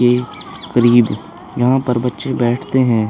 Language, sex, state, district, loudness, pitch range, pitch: Hindi, male, Chhattisgarh, Korba, -16 LUFS, 120-125 Hz, 120 Hz